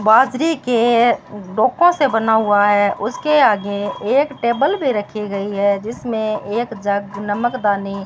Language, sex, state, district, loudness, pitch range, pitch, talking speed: Hindi, female, Rajasthan, Bikaner, -17 LUFS, 205-240 Hz, 215 Hz, 150 wpm